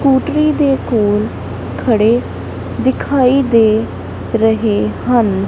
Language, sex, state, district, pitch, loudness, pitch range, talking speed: Punjabi, female, Punjab, Kapurthala, 230 Hz, -14 LUFS, 215-270 Hz, 85 wpm